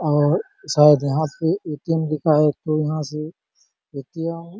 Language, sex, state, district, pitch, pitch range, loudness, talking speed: Hindi, male, Chhattisgarh, Bastar, 155 Hz, 150-165 Hz, -20 LUFS, 155 wpm